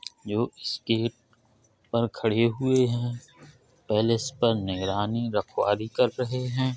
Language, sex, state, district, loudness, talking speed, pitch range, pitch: Hindi, male, Uttar Pradesh, Jalaun, -27 LUFS, 100 wpm, 110-125 Hz, 115 Hz